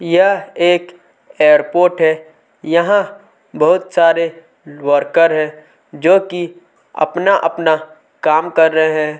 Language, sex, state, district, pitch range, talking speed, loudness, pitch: Hindi, male, Chhattisgarh, Kabirdham, 155-175 Hz, 105 wpm, -14 LUFS, 165 Hz